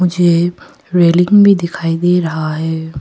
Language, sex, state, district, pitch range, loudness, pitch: Hindi, female, Arunachal Pradesh, Papum Pare, 160-180 Hz, -13 LUFS, 170 Hz